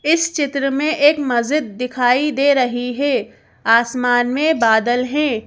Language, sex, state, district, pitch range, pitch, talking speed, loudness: Hindi, female, Madhya Pradesh, Bhopal, 245-295 Hz, 260 Hz, 140 wpm, -17 LUFS